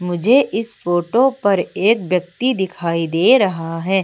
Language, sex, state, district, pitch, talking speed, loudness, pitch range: Hindi, female, Madhya Pradesh, Umaria, 190 Hz, 150 wpm, -17 LUFS, 175-225 Hz